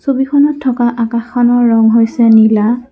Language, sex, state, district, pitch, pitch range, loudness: Assamese, female, Assam, Kamrup Metropolitan, 240 Hz, 225-255 Hz, -11 LUFS